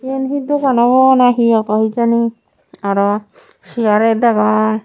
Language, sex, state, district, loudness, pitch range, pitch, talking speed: Chakma, female, Tripura, Unakoti, -14 LUFS, 215-260 Hz, 235 Hz, 135 wpm